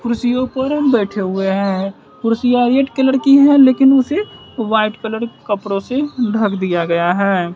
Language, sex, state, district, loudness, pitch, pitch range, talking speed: Hindi, male, Bihar, West Champaran, -15 LUFS, 230 Hz, 195-265 Hz, 165 wpm